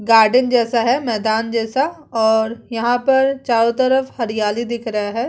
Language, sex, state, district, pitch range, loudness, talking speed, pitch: Hindi, female, Bihar, Vaishali, 225-255 Hz, -17 LUFS, 160 wpm, 235 Hz